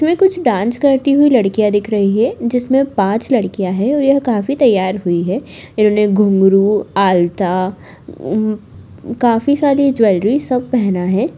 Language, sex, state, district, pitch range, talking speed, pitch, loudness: Hindi, female, Bihar, Lakhisarai, 195-265 Hz, 155 wpm, 215 Hz, -14 LUFS